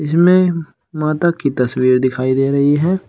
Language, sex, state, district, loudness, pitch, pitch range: Hindi, male, Uttar Pradesh, Shamli, -15 LUFS, 150 Hz, 130-170 Hz